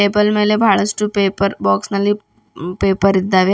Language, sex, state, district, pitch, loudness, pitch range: Kannada, female, Karnataka, Bidar, 200 Hz, -16 LUFS, 190-210 Hz